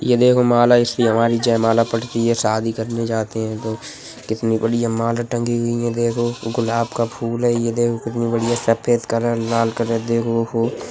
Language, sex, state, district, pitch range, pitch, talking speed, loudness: Hindi, male, Uttar Pradesh, Budaun, 115-120 Hz, 115 Hz, 200 wpm, -19 LUFS